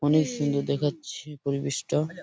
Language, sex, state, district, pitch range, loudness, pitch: Bengali, male, West Bengal, Purulia, 140-150 Hz, -28 LUFS, 145 Hz